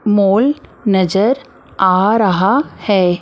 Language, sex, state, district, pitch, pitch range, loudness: Hindi, female, Maharashtra, Mumbai Suburban, 200 Hz, 190-225 Hz, -14 LUFS